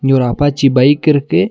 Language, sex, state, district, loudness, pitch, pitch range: Tamil, male, Tamil Nadu, Nilgiris, -12 LUFS, 140 Hz, 135-150 Hz